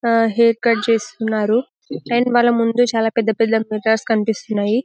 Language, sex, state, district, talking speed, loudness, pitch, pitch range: Telugu, female, Telangana, Karimnagar, 150 wpm, -17 LUFS, 230 Hz, 220-235 Hz